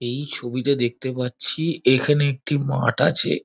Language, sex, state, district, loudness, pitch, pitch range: Bengali, male, West Bengal, Dakshin Dinajpur, -20 LUFS, 135 Hz, 125-145 Hz